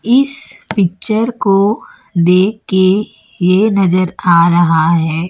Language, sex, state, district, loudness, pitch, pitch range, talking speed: Hindi, female, Chhattisgarh, Raipur, -13 LUFS, 190 Hz, 175-215 Hz, 115 wpm